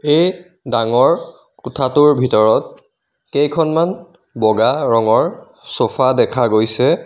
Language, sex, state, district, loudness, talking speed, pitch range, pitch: Assamese, male, Assam, Kamrup Metropolitan, -15 LUFS, 85 wpm, 115-165 Hz, 145 Hz